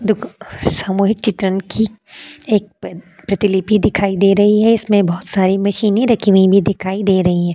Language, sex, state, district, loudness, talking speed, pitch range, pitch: Hindi, female, Uttar Pradesh, Jalaun, -15 LUFS, 165 wpm, 190-210 Hz, 200 Hz